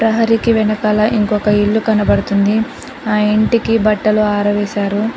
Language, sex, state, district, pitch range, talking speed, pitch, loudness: Telugu, female, Telangana, Mahabubabad, 210-225 Hz, 105 wpm, 215 Hz, -14 LUFS